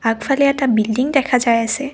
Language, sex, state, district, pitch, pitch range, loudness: Assamese, female, Assam, Kamrup Metropolitan, 250 Hz, 230-275 Hz, -16 LUFS